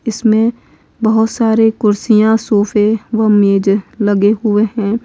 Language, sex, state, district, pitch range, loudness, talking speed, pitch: Hindi, female, Uttar Pradesh, Lalitpur, 205-225 Hz, -13 LUFS, 120 wpm, 215 Hz